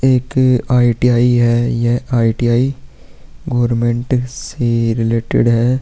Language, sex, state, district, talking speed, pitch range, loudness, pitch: Hindi, male, Bihar, Vaishali, 105 wpm, 120-125 Hz, -15 LUFS, 120 Hz